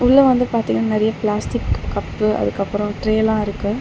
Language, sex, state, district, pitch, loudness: Tamil, female, Tamil Nadu, Chennai, 210 Hz, -19 LUFS